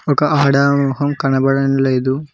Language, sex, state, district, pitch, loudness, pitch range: Telugu, male, Telangana, Mahabubabad, 140 Hz, -15 LUFS, 135-145 Hz